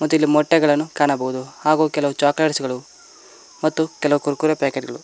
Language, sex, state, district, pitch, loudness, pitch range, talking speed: Kannada, male, Karnataka, Koppal, 150 Hz, -19 LUFS, 140-155 Hz, 130 wpm